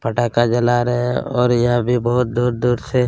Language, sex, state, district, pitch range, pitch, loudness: Hindi, male, Chhattisgarh, Kabirdham, 120-125 Hz, 120 Hz, -18 LUFS